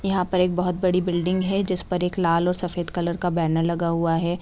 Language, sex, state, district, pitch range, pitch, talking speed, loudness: Hindi, female, Bihar, Purnia, 170-180 Hz, 180 Hz, 245 wpm, -23 LUFS